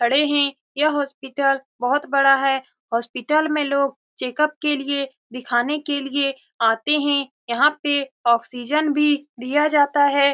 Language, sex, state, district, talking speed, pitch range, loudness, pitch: Hindi, female, Bihar, Saran, 145 wpm, 265-295 Hz, -20 LUFS, 280 Hz